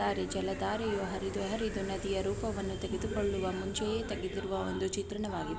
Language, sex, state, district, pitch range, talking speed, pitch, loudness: Kannada, female, Karnataka, Chamarajanagar, 180-210 Hz, 105 wpm, 195 Hz, -35 LUFS